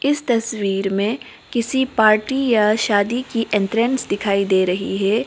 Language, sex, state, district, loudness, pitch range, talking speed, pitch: Hindi, female, Arunachal Pradesh, Lower Dibang Valley, -19 LUFS, 200-245 Hz, 150 wpm, 220 Hz